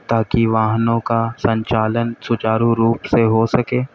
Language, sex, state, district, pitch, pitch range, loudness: Hindi, male, Uttar Pradesh, Lalitpur, 115 Hz, 110-115 Hz, -17 LUFS